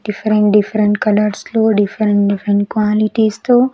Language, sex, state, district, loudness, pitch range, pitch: Telugu, female, Andhra Pradesh, Sri Satya Sai, -14 LUFS, 205-220 Hz, 210 Hz